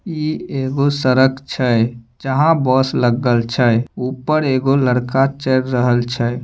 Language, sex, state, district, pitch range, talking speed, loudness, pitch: Maithili, male, Bihar, Samastipur, 120-135 Hz, 130 wpm, -17 LUFS, 130 Hz